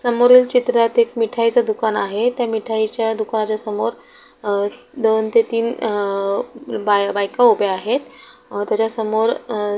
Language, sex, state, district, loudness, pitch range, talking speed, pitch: Marathi, female, Maharashtra, Solapur, -18 LUFS, 210-235 Hz, 135 wpm, 220 Hz